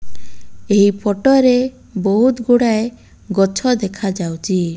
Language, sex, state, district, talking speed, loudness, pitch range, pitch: Odia, female, Odisha, Malkangiri, 90 wpm, -16 LUFS, 180-240 Hz, 200 Hz